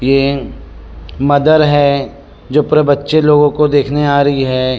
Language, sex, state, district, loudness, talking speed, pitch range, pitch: Chhattisgarhi, male, Chhattisgarh, Rajnandgaon, -12 LUFS, 150 wpm, 140-150 Hz, 145 Hz